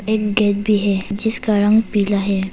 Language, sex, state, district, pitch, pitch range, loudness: Hindi, female, Arunachal Pradesh, Papum Pare, 205 Hz, 200-215 Hz, -17 LUFS